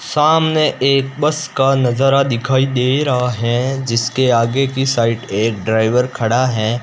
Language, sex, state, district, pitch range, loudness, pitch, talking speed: Hindi, male, Rajasthan, Bikaner, 115-135 Hz, -15 LUFS, 130 Hz, 150 wpm